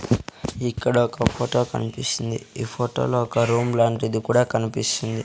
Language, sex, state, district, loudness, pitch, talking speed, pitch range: Telugu, male, Andhra Pradesh, Sri Satya Sai, -23 LUFS, 115 Hz, 135 wpm, 115-120 Hz